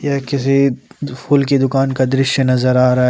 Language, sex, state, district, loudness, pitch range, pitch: Hindi, male, Jharkhand, Ranchi, -15 LUFS, 130-140 Hz, 135 Hz